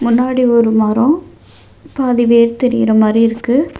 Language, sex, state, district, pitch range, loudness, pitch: Tamil, female, Tamil Nadu, Nilgiris, 230-255 Hz, -13 LUFS, 235 Hz